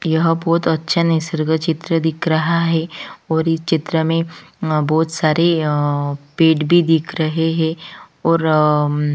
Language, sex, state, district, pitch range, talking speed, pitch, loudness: Hindi, female, Chhattisgarh, Kabirdham, 155-165 Hz, 155 wpm, 160 Hz, -17 LUFS